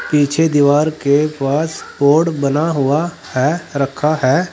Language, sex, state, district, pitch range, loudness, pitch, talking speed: Hindi, male, Uttar Pradesh, Saharanpur, 140-160 Hz, -16 LUFS, 150 Hz, 130 wpm